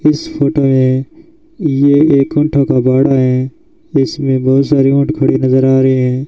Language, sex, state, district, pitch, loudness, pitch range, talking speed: Hindi, male, Rajasthan, Bikaner, 135 Hz, -12 LUFS, 130-150 Hz, 170 wpm